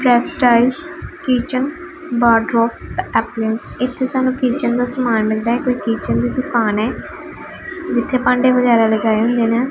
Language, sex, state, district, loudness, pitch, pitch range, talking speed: Punjabi, female, Punjab, Pathankot, -17 LUFS, 245 Hz, 230-255 Hz, 150 wpm